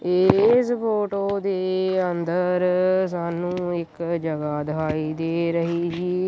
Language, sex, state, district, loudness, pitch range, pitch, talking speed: Punjabi, male, Punjab, Kapurthala, -23 LUFS, 170-185 Hz, 180 Hz, 105 wpm